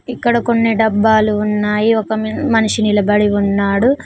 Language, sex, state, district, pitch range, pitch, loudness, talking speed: Telugu, female, Telangana, Mahabubabad, 210-225 Hz, 220 Hz, -14 LUFS, 130 wpm